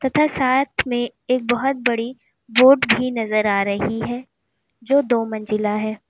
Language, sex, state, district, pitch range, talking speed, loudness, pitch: Hindi, female, Uttar Pradesh, Lalitpur, 220-260 Hz, 155 wpm, -19 LUFS, 240 Hz